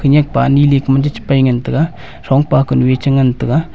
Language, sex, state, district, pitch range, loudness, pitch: Wancho, male, Arunachal Pradesh, Longding, 130-145 Hz, -13 LUFS, 135 Hz